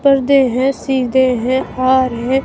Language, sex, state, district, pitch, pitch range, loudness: Hindi, female, Himachal Pradesh, Shimla, 260 Hz, 255-270 Hz, -14 LUFS